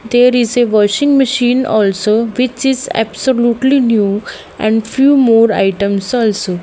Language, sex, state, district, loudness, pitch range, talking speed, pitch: English, female, Haryana, Jhajjar, -12 LUFS, 210-255 Hz, 135 wpm, 230 Hz